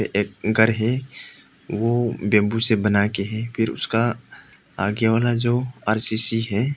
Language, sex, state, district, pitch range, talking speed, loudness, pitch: Hindi, male, Arunachal Pradesh, Papum Pare, 110-120 Hz, 140 wpm, -21 LUFS, 115 Hz